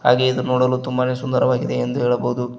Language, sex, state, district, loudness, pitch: Kannada, male, Karnataka, Koppal, -19 LUFS, 125 Hz